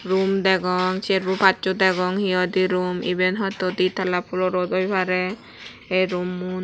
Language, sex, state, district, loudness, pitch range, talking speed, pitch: Chakma, female, Tripura, West Tripura, -21 LUFS, 180-190 Hz, 155 wpm, 185 Hz